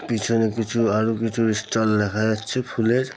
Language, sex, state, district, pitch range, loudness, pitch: Bengali, male, West Bengal, North 24 Parganas, 110-115 Hz, -22 LUFS, 115 Hz